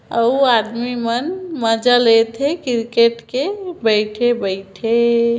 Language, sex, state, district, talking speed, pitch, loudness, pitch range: Hindi, female, Chhattisgarh, Bilaspur, 100 wpm, 235 Hz, -17 LUFS, 225-250 Hz